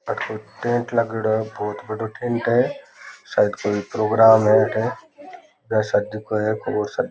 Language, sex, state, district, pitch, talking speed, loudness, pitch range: Rajasthani, male, Rajasthan, Nagaur, 110 Hz, 135 wpm, -21 LUFS, 105-120 Hz